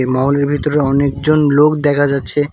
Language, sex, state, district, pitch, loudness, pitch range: Bengali, male, West Bengal, Cooch Behar, 145 Hz, -14 LUFS, 140-150 Hz